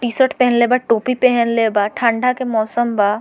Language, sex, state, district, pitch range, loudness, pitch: Bhojpuri, female, Bihar, Muzaffarpur, 225-250 Hz, -16 LUFS, 235 Hz